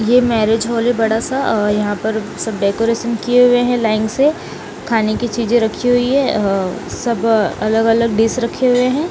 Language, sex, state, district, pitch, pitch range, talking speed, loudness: Hindi, female, Punjab, Kapurthala, 230 Hz, 220-245 Hz, 190 wpm, -16 LUFS